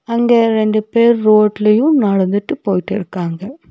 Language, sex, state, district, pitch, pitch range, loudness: Tamil, female, Tamil Nadu, Nilgiris, 215 Hz, 200-230 Hz, -14 LUFS